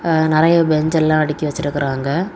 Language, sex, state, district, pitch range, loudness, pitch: Tamil, female, Tamil Nadu, Kanyakumari, 150-165 Hz, -16 LUFS, 155 Hz